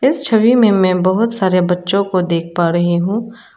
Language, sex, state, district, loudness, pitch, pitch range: Hindi, female, Arunachal Pradesh, Lower Dibang Valley, -14 LUFS, 190 Hz, 180-225 Hz